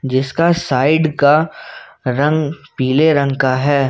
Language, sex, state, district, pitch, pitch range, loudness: Hindi, male, Jharkhand, Ranchi, 145 Hz, 135-155 Hz, -15 LUFS